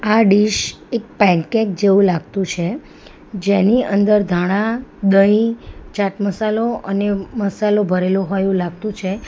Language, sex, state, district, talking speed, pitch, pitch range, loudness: Gujarati, female, Gujarat, Valsad, 130 wpm, 200 Hz, 195-215 Hz, -17 LUFS